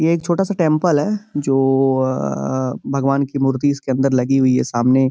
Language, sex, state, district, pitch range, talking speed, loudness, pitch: Hindi, male, Uttar Pradesh, Gorakhpur, 130-145 Hz, 190 wpm, -18 LUFS, 135 Hz